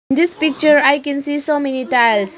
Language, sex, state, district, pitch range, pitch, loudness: English, female, Arunachal Pradesh, Lower Dibang Valley, 265-300 Hz, 285 Hz, -15 LUFS